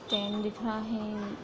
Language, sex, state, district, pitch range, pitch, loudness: Hindi, female, Bihar, Araria, 210-220 Hz, 210 Hz, -33 LUFS